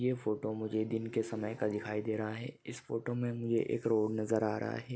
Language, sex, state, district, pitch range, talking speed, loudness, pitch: Hindi, male, Maharashtra, Nagpur, 110-115 Hz, 240 wpm, -35 LUFS, 110 Hz